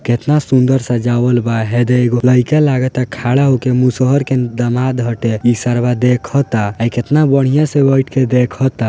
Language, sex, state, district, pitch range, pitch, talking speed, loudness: Bhojpuri, male, Bihar, Gopalganj, 120-135 Hz, 125 Hz, 160 wpm, -13 LUFS